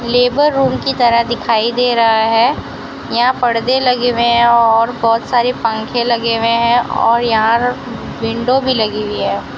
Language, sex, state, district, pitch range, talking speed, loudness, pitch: Hindi, female, Rajasthan, Bikaner, 230-245 Hz, 170 wpm, -14 LUFS, 235 Hz